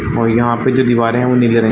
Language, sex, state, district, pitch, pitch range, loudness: Hindi, male, Chhattisgarh, Balrampur, 120 Hz, 115-125 Hz, -13 LUFS